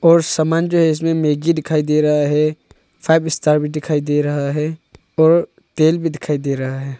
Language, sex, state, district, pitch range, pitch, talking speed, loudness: Hindi, male, Arunachal Pradesh, Longding, 145-160 Hz, 155 Hz, 205 wpm, -17 LUFS